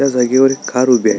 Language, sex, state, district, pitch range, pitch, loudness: Marathi, male, Maharashtra, Solapur, 125-135 Hz, 125 Hz, -13 LUFS